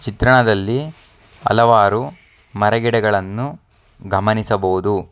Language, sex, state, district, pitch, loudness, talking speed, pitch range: Kannada, male, Karnataka, Bangalore, 110 Hz, -16 LUFS, 60 wpm, 100-120 Hz